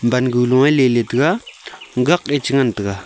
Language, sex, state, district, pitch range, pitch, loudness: Wancho, male, Arunachal Pradesh, Longding, 120-135 Hz, 125 Hz, -16 LUFS